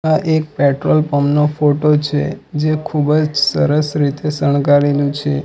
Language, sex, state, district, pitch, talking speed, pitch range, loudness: Gujarati, male, Gujarat, Valsad, 150 Hz, 155 wpm, 145-150 Hz, -15 LUFS